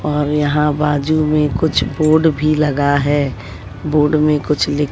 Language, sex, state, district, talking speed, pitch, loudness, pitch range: Hindi, female, Bihar, West Champaran, 160 wpm, 150 Hz, -15 LUFS, 145-150 Hz